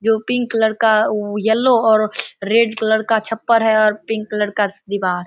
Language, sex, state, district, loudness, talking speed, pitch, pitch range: Hindi, male, Bihar, Samastipur, -17 LUFS, 195 wpm, 220 Hz, 210-225 Hz